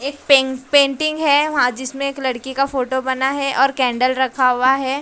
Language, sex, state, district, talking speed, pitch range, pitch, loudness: Hindi, female, Maharashtra, Mumbai Suburban, 205 wpm, 260-275 Hz, 265 Hz, -17 LUFS